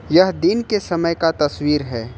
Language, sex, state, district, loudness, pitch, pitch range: Hindi, male, Jharkhand, Ranchi, -18 LUFS, 165 Hz, 145-180 Hz